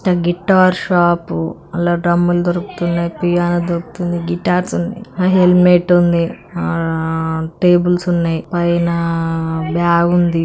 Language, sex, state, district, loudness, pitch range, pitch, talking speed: Telugu, female, Andhra Pradesh, Chittoor, -15 LUFS, 170-175 Hz, 175 Hz, 80 wpm